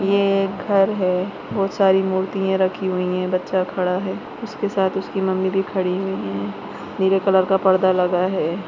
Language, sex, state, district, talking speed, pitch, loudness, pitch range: Hindi, female, Maharashtra, Nagpur, 185 wpm, 190 Hz, -20 LUFS, 185-195 Hz